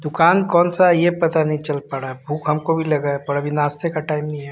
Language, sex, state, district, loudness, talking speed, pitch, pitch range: Hindi, male, Bihar, Katihar, -19 LUFS, 290 wpm, 150 Hz, 145-165 Hz